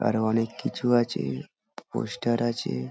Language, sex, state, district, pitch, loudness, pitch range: Bengali, male, West Bengal, Dakshin Dinajpur, 115 Hz, -27 LUFS, 70-120 Hz